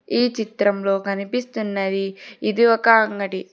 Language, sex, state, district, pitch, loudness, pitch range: Telugu, female, Telangana, Hyderabad, 205 Hz, -20 LUFS, 195-230 Hz